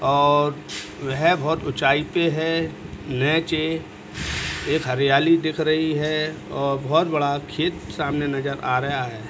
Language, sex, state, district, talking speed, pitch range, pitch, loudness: Hindi, male, Uttar Pradesh, Muzaffarnagar, 135 wpm, 140-160 Hz, 150 Hz, -22 LUFS